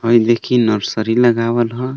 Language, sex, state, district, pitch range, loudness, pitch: Bhojpuri, male, Jharkhand, Palamu, 115-120 Hz, -15 LUFS, 115 Hz